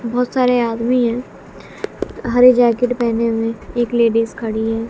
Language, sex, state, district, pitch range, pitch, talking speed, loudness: Hindi, female, Bihar, West Champaran, 230-245 Hz, 235 Hz, 145 wpm, -17 LUFS